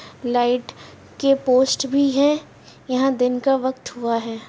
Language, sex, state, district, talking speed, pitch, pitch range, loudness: Hindi, female, Uttar Pradesh, Muzaffarnagar, 145 wpm, 260 Hz, 245-275 Hz, -20 LUFS